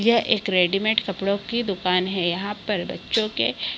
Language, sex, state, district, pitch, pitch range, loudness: Hindi, female, Bihar, Kishanganj, 200 Hz, 190-215 Hz, -23 LUFS